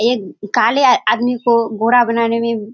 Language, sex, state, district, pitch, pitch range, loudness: Hindi, female, Bihar, Kishanganj, 230 Hz, 225-245 Hz, -15 LUFS